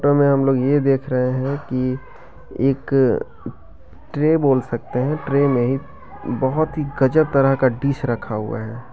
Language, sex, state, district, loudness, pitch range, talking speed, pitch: Maithili, male, Bihar, Begusarai, -19 LUFS, 130-140 Hz, 175 wpm, 135 Hz